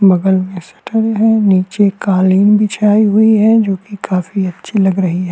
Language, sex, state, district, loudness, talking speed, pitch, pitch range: Hindi, male, Uttarakhand, Tehri Garhwal, -12 LUFS, 180 wpm, 200 Hz, 185-210 Hz